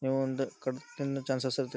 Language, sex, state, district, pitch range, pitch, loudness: Kannada, male, Karnataka, Dharwad, 130-135 Hz, 135 Hz, -34 LUFS